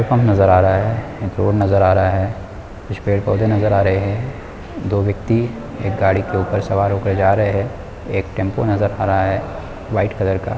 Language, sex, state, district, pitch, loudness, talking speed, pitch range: Hindi, male, Chhattisgarh, Rajnandgaon, 100 Hz, -17 LUFS, 215 wpm, 95-105 Hz